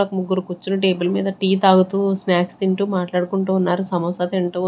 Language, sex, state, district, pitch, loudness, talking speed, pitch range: Telugu, female, Andhra Pradesh, Sri Satya Sai, 190 Hz, -19 LUFS, 155 wpm, 180-195 Hz